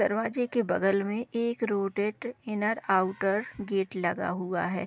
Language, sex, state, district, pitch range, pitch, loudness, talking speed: Hindi, female, Bihar, Supaul, 190-225 Hz, 205 Hz, -29 LUFS, 150 wpm